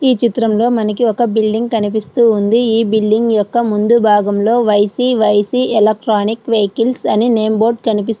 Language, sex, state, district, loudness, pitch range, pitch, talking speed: Telugu, female, Andhra Pradesh, Srikakulam, -13 LUFS, 215-235 Hz, 225 Hz, 155 wpm